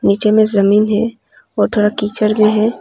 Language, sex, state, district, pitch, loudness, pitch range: Hindi, female, Arunachal Pradesh, Papum Pare, 215 Hz, -14 LUFS, 210-215 Hz